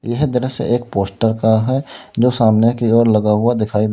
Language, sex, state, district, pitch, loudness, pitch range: Hindi, male, Uttar Pradesh, Lalitpur, 115 Hz, -16 LUFS, 110-120 Hz